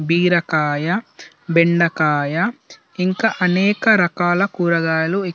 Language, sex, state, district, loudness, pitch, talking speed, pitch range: Telugu, male, Telangana, Nalgonda, -17 LUFS, 175 Hz, 80 wpm, 165-195 Hz